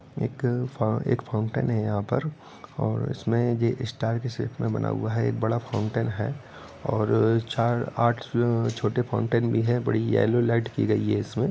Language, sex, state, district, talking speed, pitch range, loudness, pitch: Hindi, male, Bihar, Gopalganj, 180 wpm, 110-125 Hz, -26 LUFS, 115 Hz